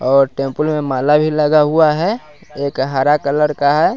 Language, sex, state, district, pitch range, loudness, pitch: Hindi, male, Bihar, West Champaran, 140-155 Hz, -15 LUFS, 150 Hz